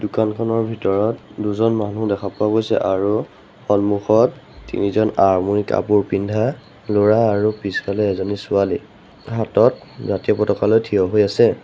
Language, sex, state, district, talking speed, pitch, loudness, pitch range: Assamese, male, Assam, Sonitpur, 130 wpm, 105 Hz, -19 LUFS, 100-110 Hz